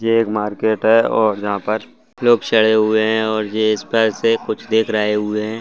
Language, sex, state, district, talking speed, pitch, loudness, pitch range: Hindi, male, Chhattisgarh, Bastar, 225 wpm, 110 Hz, -17 LUFS, 105-110 Hz